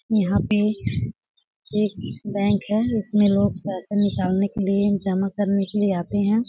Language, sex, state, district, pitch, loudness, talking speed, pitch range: Hindi, female, Chhattisgarh, Sarguja, 205 Hz, -22 LUFS, 155 wpm, 195-210 Hz